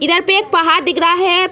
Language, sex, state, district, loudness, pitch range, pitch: Hindi, female, Bihar, Jamui, -12 LUFS, 340-370 Hz, 355 Hz